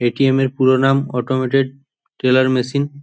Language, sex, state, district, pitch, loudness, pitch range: Bengali, male, West Bengal, Jhargram, 130 Hz, -17 LUFS, 130-135 Hz